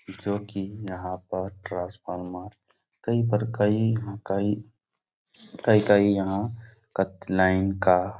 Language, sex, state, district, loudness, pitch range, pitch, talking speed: Hindi, male, Bihar, Supaul, -26 LUFS, 95-105 Hz, 100 Hz, 95 wpm